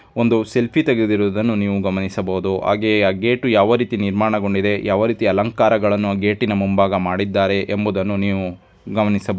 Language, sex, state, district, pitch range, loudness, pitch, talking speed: Kannada, male, Karnataka, Dharwad, 100-110 Hz, -18 LUFS, 100 Hz, 140 wpm